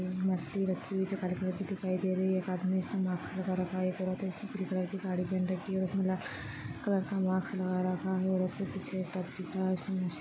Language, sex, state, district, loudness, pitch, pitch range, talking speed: Hindi, female, Uttar Pradesh, Ghazipur, -34 LUFS, 185 Hz, 185-190 Hz, 230 wpm